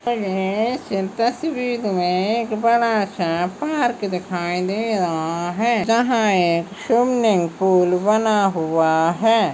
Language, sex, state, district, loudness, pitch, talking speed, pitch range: Hindi, male, Maharashtra, Solapur, -19 LUFS, 205 Hz, 115 wpm, 180-230 Hz